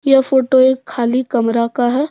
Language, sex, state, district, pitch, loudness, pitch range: Hindi, female, Jharkhand, Deoghar, 260 Hz, -15 LUFS, 240-265 Hz